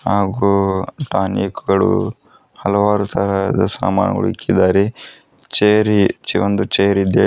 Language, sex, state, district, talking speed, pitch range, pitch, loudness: Kannada, male, Karnataka, Bidar, 105 wpm, 95-105 Hz, 100 Hz, -16 LUFS